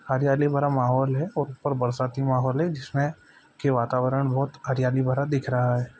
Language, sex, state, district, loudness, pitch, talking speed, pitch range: Hindi, male, Chhattisgarh, Bilaspur, -25 LUFS, 135 Hz, 180 wpm, 130-140 Hz